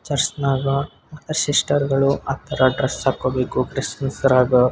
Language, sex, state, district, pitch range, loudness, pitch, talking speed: Kannada, male, Karnataka, Bellary, 130-145 Hz, -20 LUFS, 135 Hz, 115 wpm